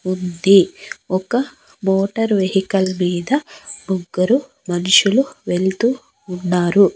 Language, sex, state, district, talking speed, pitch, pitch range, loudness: Telugu, female, Andhra Pradesh, Annamaya, 80 wpm, 190 Hz, 185-225 Hz, -18 LUFS